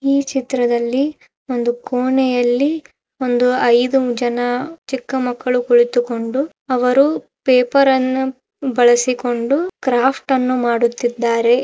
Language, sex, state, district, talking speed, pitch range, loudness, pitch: Kannada, female, Karnataka, Raichur, 95 wpm, 240-265 Hz, -17 LUFS, 250 Hz